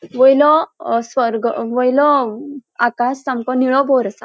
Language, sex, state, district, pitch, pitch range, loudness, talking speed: Konkani, female, Goa, North and South Goa, 255 Hz, 240-275 Hz, -16 LUFS, 115 wpm